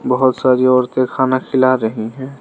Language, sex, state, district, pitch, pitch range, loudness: Hindi, male, Arunachal Pradesh, Lower Dibang Valley, 130 Hz, 125-130 Hz, -15 LUFS